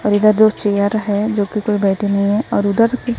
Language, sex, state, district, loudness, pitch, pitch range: Hindi, female, Maharashtra, Gondia, -16 LUFS, 210 Hz, 205-215 Hz